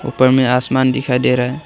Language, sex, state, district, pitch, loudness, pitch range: Hindi, male, Arunachal Pradesh, Longding, 130 Hz, -15 LUFS, 125-130 Hz